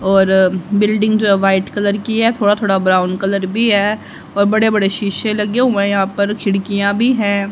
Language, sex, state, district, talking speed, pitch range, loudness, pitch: Hindi, female, Haryana, Rohtak, 205 wpm, 195-215 Hz, -15 LUFS, 200 Hz